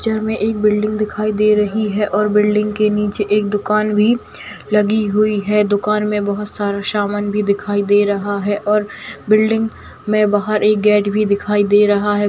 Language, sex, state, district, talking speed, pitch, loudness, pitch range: Hindi, female, Bihar, Madhepura, 190 wpm, 210 Hz, -16 LUFS, 205-215 Hz